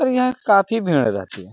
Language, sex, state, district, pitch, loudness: Hindi, male, Bihar, Lakhisarai, 200 Hz, -18 LUFS